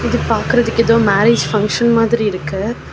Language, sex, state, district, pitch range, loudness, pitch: Tamil, female, Tamil Nadu, Kanyakumari, 205-235 Hz, -14 LUFS, 230 Hz